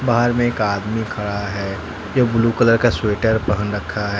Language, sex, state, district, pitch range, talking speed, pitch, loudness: Hindi, male, Jharkhand, Ranchi, 100-115 Hz, 200 wpm, 105 Hz, -19 LUFS